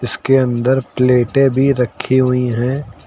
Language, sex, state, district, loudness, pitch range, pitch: Hindi, male, Uttar Pradesh, Lucknow, -15 LUFS, 125-135 Hz, 125 Hz